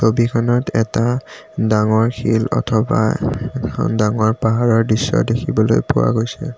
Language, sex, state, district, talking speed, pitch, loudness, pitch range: Assamese, male, Assam, Kamrup Metropolitan, 110 wpm, 115 Hz, -17 LUFS, 110-120 Hz